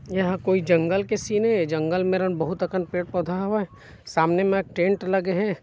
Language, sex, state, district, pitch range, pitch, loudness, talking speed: Chhattisgarhi, male, Chhattisgarh, Bilaspur, 180-195 Hz, 185 Hz, -23 LUFS, 180 wpm